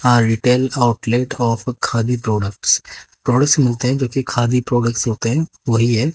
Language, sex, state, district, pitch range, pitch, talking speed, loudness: Hindi, female, Haryana, Jhajjar, 115-130 Hz, 120 Hz, 165 wpm, -17 LUFS